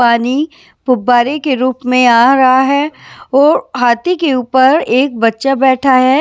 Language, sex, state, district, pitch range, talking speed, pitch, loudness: Hindi, female, Bihar, West Champaran, 250-280 Hz, 155 wpm, 260 Hz, -11 LUFS